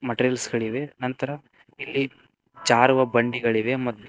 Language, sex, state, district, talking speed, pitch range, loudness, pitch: Kannada, male, Karnataka, Koppal, 100 wpm, 120-130 Hz, -24 LUFS, 125 Hz